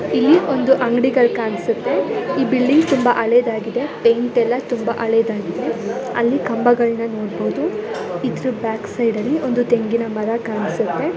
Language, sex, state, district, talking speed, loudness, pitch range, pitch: Kannada, female, Karnataka, Bijapur, 130 wpm, -18 LUFS, 230-255 Hz, 240 Hz